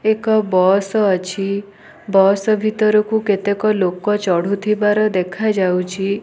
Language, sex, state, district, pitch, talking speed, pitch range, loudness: Odia, female, Odisha, Nuapada, 200 Hz, 105 wpm, 190-215 Hz, -17 LUFS